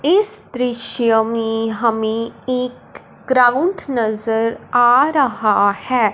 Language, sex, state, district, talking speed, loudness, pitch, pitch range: Hindi, male, Punjab, Fazilka, 100 wpm, -16 LUFS, 235 Hz, 225-255 Hz